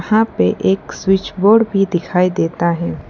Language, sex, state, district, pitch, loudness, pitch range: Hindi, female, Gujarat, Valsad, 180 Hz, -16 LUFS, 165-195 Hz